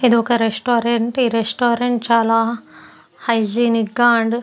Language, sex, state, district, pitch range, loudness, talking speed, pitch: Telugu, female, Andhra Pradesh, Sri Satya Sai, 225-240 Hz, -17 LUFS, 110 wpm, 235 Hz